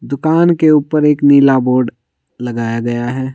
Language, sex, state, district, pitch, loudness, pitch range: Hindi, male, Himachal Pradesh, Shimla, 135 Hz, -13 LUFS, 120-150 Hz